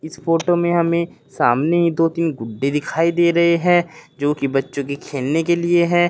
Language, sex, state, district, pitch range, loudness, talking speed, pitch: Hindi, male, Uttar Pradesh, Saharanpur, 140-170 Hz, -18 LUFS, 195 wpm, 165 Hz